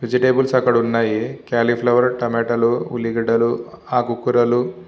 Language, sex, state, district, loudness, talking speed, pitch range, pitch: Telugu, male, Andhra Pradesh, Visakhapatnam, -18 LUFS, 110 wpm, 115-125 Hz, 120 Hz